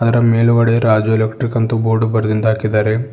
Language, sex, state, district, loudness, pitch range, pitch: Kannada, male, Karnataka, Bidar, -15 LUFS, 110-115 Hz, 115 Hz